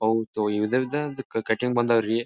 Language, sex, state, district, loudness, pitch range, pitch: Kannada, male, Karnataka, Bijapur, -25 LUFS, 110-125 Hz, 115 Hz